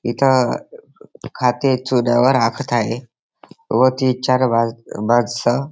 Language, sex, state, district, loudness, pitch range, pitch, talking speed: Marathi, male, Maharashtra, Dhule, -18 LUFS, 120-130 Hz, 125 Hz, 95 wpm